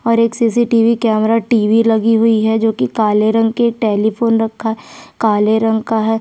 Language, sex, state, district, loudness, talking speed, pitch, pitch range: Hindi, female, Chhattisgarh, Sukma, -14 LUFS, 195 wpm, 225 Hz, 220-230 Hz